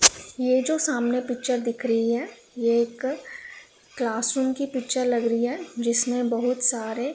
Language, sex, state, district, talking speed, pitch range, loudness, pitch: Hindi, female, Punjab, Pathankot, 160 wpm, 235-260 Hz, -24 LUFS, 250 Hz